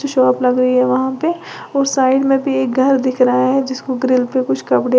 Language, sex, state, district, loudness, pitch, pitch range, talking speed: Hindi, female, Uttar Pradesh, Lalitpur, -15 LUFS, 260 Hz, 255-270 Hz, 240 wpm